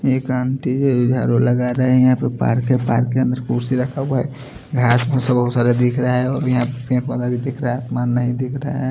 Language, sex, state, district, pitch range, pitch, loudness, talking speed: Hindi, male, Chhattisgarh, Raipur, 125-130 Hz, 125 Hz, -18 LUFS, 255 wpm